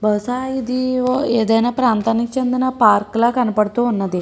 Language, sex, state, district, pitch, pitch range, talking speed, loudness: Telugu, female, Andhra Pradesh, Srikakulam, 235 Hz, 220-255 Hz, 140 wpm, -17 LUFS